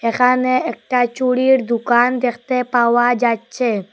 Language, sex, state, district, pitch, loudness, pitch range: Bengali, female, Assam, Hailakandi, 245 Hz, -16 LUFS, 235-255 Hz